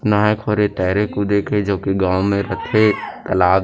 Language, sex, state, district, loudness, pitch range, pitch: Chhattisgarhi, male, Chhattisgarh, Rajnandgaon, -18 LUFS, 95-105 Hz, 100 Hz